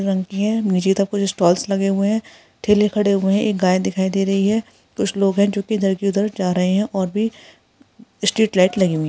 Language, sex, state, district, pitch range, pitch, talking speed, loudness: Hindi, female, Rajasthan, Churu, 190-210 Hz, 195 Hz, 250 wpm, -19 LUFS